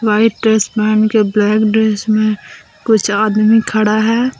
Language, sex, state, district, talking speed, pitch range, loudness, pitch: Hindi, female, Jharkhand, Deoghar, 135 wpm, 215-220 Hz, -13 LUFS, 215 Hz